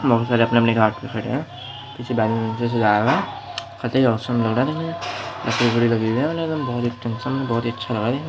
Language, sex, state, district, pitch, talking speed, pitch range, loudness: Hindi, male, Bihar, Araria, 120 Hz, 70 wpm, 115-125 Hz, -21 LUFS